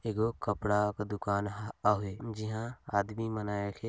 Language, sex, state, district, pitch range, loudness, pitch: Hindi, male, Chhattisgarh, Sarguja, 105-110 Hz, -33 LUFS, 105 Hz